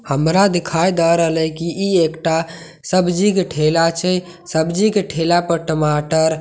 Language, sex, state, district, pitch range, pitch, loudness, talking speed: Maithili, male, Bihar, Katihar, 160-180 Hz, 165 Hz, -17 LUFS, 160 wpm